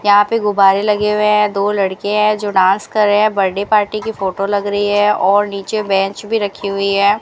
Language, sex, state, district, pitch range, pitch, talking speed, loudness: Hindi, female, Rajasthan, Bikaner, 200-210 Hz, 205 Hz, 235 wpm, -15 LUFS